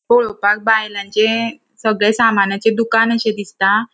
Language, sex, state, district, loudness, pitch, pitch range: Konkani, female, Goa, North and South Goa, -16 LUFS, 220 Hz, 205-230 Hz